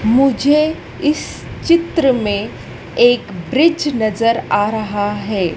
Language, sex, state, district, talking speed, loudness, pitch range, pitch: Hindi, female, Madhya Pradesh, Dhar, 110 wpm, -16 LUFS, 205-295 Hz, 240 Hz